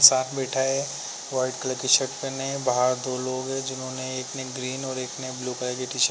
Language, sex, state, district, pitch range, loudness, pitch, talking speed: Hindi, male, Uttar Pradesh, Muzaffarnagar, 130-135 Hz, -26 LUFS, 130 Hz, 245 wpm